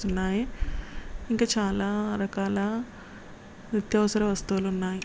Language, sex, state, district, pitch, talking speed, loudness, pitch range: Telugu, female, Telangana, Karimnagar, 205 Hz, 85 wpm, -28 LUFS, 195-215 Hz